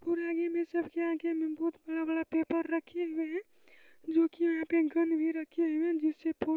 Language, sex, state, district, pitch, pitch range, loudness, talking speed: Hindi, female, Bihar, Supaul, 330 Hz, 320-340 Hz, -32 LUFS, 210 wpm